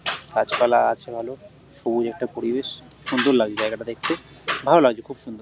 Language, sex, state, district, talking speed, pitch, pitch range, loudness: Bengali, male, West Bengal, North 24 Parganas, 165 wpm, 120 Hz, 115-130 Hz, -22 LUFS